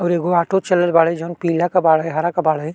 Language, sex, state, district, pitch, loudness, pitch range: Bhojpuri, male, Uttar Pradesh, Deoria, 170 Hz, -17 LUFS, 165-175 Hz